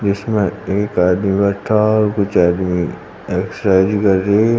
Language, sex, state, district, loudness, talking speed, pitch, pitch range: Hindi, male, Uttar Pradesh, Shamli, -16 LUFS, 170 wpm, 100 Hz, 95-105 Hz